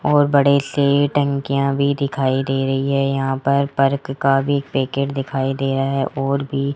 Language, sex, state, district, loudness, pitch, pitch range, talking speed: Hindi, male, Rajasthan, Jaipur, -19 LUFS, 140 Hz, 135-140 Hz, 205 wpm